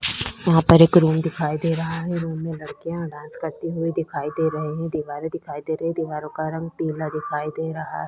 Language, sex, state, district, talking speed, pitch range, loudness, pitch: Hindi, female, Chhattisgarh, Sukma, 225 wpm, 155-165 Hz, -23 LUFS, 160 Hz